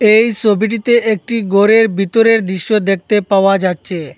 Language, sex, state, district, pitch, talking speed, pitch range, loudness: Bengali, male, Assam, Hailakandi, 210 Hz, 145 wpm, 195-225 Hz, -13 LUFS